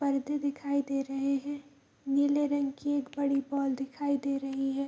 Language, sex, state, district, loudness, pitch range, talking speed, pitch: Hindi, female, Bihar, Kishanganj, -31 LUFS, 275-285 Hz, 210 wpm, 280 Hz